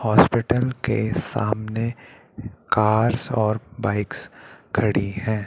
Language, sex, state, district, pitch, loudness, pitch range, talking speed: Hindi, male, Chandigarh, Chandigarh, 110 Hz, -22 LUFS, 105-120 Hz, 90 wpm